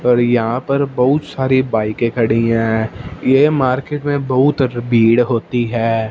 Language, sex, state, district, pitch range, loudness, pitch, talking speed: Hindi, male, Punjab, Fazilka, 115-135 Hz, -16 LUFS, 125 Hz, 155 wpm